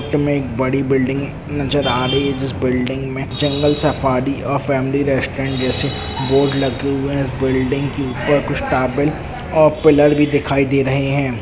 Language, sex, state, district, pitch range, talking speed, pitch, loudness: Hindi, male, Bihar, Jamui, 130-140 Hz, 175 wpm, 135 Hz, -17 LUFS